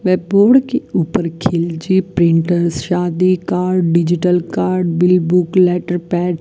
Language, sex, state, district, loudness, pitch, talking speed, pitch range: Hindi, female, Rajasthan, Bikaner, -15 LUFS, 180 Hz, 140 wpm, 170-185 Hz